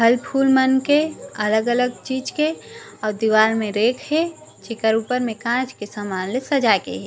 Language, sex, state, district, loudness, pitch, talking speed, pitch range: Chhattisgarhi, female, Chhattisgarh, Raigarh, -20 LUFS, 245 Hz, 185 wpm, 220-270 Hz